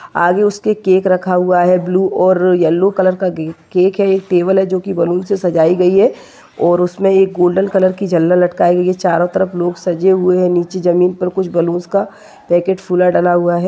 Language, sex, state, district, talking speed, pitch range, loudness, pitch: Hindi, female, Maharashtra, Sindhudurg, 215 wpm, 175-190 Hz, -13 LUFS, 180 Hz